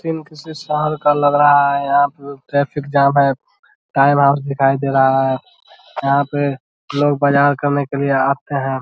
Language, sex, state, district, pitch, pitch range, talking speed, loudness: Hindi, male, Bihar, Vaishali, 140 Hz, 140-145 Hz, 185 wpm, -16 LUFS